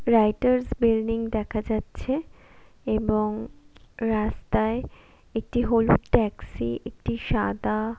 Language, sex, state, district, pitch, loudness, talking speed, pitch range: Bengali, female, West Bengal, Kolkata, 220 Hz, -25 LUFS, 100 wpm, 215-230 Hz